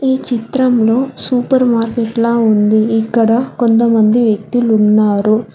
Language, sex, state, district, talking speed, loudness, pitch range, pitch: Telugu, female, Telangana, Hyderabad, 95 wpm, -13 LUFS, 220-240 Hz, 230 Hz